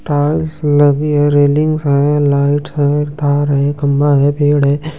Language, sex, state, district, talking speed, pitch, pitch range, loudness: Hindi, male, Bihar, Kaimur, 155 wpm, 145 Hz, 145-150 Hz, -13 LUFS